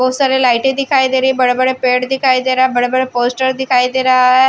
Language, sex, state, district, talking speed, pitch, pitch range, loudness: Hindi, female, Bihar, Patna, 240 wpm, 260 Hz, 250-265 Hz, -13 LUFS